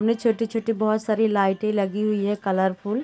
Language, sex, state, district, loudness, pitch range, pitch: Hindi, female, Uttar Pradesh, Gorakhpur, -23 LUFS, 200-225 Hz, 215 Hz